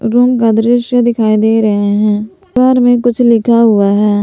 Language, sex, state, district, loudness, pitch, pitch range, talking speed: Hindi, female, Jharkhand, Palamu, -10 LUFS, 225 Hz, 215-245 Hz, 185 wpm